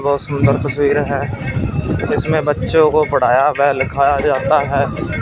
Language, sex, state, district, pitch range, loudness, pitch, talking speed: Hindi, male, Punjab, Fazilka, 135-145 Hz, -16 LUFS, 140 Hz, 140 wpm